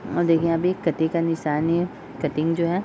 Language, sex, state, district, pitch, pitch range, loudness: Hindi, female, Bihar, Sitamarhi, 165 Hz, 160-170 Hz, -23 LUFS